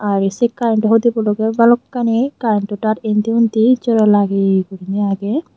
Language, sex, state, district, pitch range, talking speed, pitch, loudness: Chakma, female, Tripura, Unakoti, 205-235 Hz, 150 wpm, 220 Hz, -15 LUFS